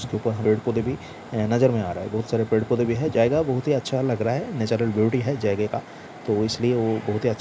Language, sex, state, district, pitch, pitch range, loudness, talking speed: Hindi, male, Bihar, Jamui, 115 Hz, 110-125 Hz, -23 LUFS, 265 wpm